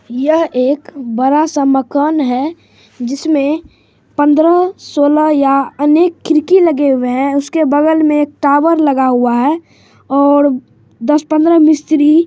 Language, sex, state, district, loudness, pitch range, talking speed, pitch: Hindi, female, Bihar, Supaul, -12 LUFS, 275-315 Hz, 130 wpm, 295 Hz